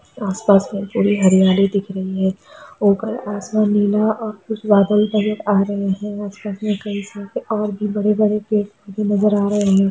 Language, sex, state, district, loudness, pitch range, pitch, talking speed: Hindi, female, Chhattisgarh, Raigarh, -18 LUFS, 200-210 Hz, 205 Hz, 195 wpm